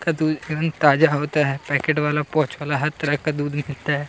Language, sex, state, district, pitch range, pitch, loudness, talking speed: Hindi, male, Chhattisgarh, Kabirdham, 145-155 Hz, 150 Hz, -21 LUFS, 250 wpm